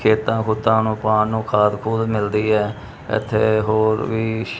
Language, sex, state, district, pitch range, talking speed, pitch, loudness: Punjabi, male, Punjab, Kapurthala, 105-110 Hz, 155 wpm, 110 Hz, -19 LUFS